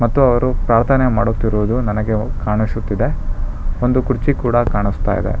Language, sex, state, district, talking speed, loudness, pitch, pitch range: Kannada, male, Karnataka, Bangalore, 120 wpm, -17 LUFS, 115 Hz, 105-125 Hz